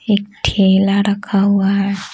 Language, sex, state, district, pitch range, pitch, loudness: Hindi, female, Bihar, Patna, 195-205 Hz, 200 Hz, -15 LUFS